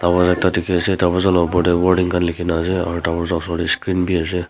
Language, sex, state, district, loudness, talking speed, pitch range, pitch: Nagamese, male, Nagaland, Kohima, -18 LUFS, 225 wpm, 85-90 Hz, 90 Hz